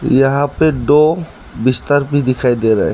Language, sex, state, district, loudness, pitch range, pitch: Hindi, male, Arunachal Pradesh, Lower Dibang Valley, -14 LUFS, 130-145 Hz, 140 Hz